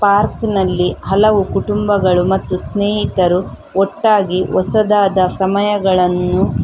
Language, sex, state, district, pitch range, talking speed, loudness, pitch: Kannada, female, Karnataka, Dakshina Kannada, 185-205 Hz, 90 wpm, -15 LUFS, 195 Hz